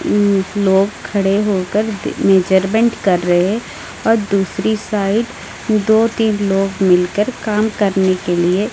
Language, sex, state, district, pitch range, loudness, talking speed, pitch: Hindi, female, Odisha, Malkangiri, 190-215 Hz, -16 LUFS, 115 wpm, 205 Hz